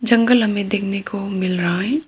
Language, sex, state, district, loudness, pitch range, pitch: Hindi, female, Arunachal Pradesh, Papum Pare, -19 LUFS, 195-235 Hz, 205 Hz